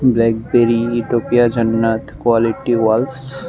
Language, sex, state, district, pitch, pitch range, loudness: Bengali, male, Tripura, West Tripura, 115 Hz, 115-120 Hz, -16 LUFS